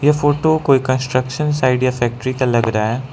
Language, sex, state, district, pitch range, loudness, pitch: Hindi, male, Arunachal Pradesh, Lower Dibang Valley, 125-145 Hz, -17 LUFS, 130 Hz